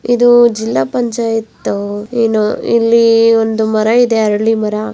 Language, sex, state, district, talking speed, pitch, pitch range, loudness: Kannada, female, Karnataka, Dakshina Kannada, 135 wpm, 225 Hz, 215-235 Hz, -12 LUFS